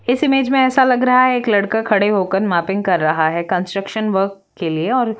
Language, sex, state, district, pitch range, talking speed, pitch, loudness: Hindi, female, Jharkhand, Jamtara, 190-250 Hz, 230 wpm, 205 Hz, -16 LUFS